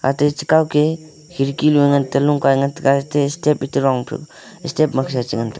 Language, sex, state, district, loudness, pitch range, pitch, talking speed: Wancho, male, Arunachal Pradesh, Longding, -17 LUFS, 135-150 Hz, 145 Hz, 195 wpm